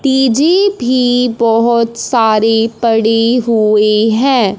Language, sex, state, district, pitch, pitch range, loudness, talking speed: Hindi, male, Punjab, Fazilka, 230 Hz, 225-250 Hz, -11 LUFS, 90 wpm